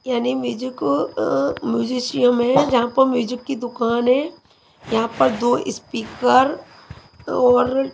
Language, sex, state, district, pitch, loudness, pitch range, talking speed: Hindi, female, Punjab, Kapurthala, 250 Hz, -19 LUFS, 240-260 Hz, 130 wpm